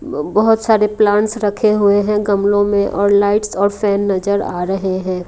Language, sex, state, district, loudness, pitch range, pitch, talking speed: Hindi, female, Haryana, Rohtak, -15 LUFS, 200-210 Hz, 205 Hz, 180 wpm